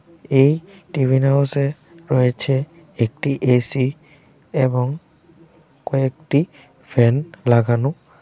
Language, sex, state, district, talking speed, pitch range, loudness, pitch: Bengali, male, Tripura, West Tripura, 80 wpm, 130-155 Hz, -19 LUFS, 140 Hz